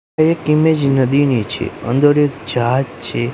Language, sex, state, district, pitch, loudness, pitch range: Gujarati, male, Gujarat, Gandhinagar, 140 Hz, -15 LUFS, 120-150 Hz